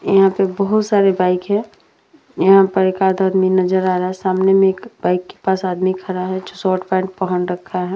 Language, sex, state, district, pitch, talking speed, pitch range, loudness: Hindi, female, Uttar Pradesh, Hamirpur, 190 Hz, 220 wpm, 185-195 Hz, -17 LUFS